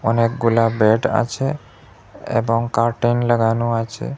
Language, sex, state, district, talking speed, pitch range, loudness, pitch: Bengali, male, Assam, Hailakandi, 100 wpm, 115-120 Hz, -18 LUFS, 115 Hz